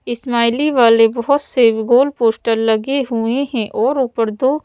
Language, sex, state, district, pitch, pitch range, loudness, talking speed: Hindi, female, Madhya Pradesh, Bhopal, 240 Hz, 225-270 Hz, -15 LUFS, 155 wpm